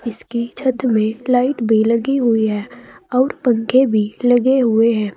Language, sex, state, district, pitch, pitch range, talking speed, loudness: Hindi, female, Uttar Pradesh, Saharanpur, 235 Hz, 225-255 Hz, 160 wpm, -16 LUFS